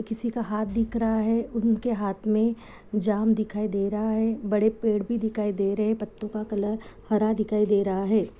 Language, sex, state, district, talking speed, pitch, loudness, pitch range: Hindi, female, Chhattisgarh, Jashpur, 205 wpm, 215 Hz, -26 LUFS, 210-225 Hz